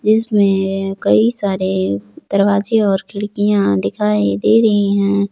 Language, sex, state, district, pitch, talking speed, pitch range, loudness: Hindi, male, Jharkhand, Palamu, 200 Hz, 115 wpm, 190-205 Hz, -15 LUFS